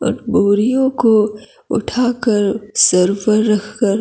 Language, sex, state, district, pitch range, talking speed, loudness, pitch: Hindi, female, Chhattisgarh, Kabirdham, 205-240 Hz, 120 wpm, -15 LUFS, 215 Hz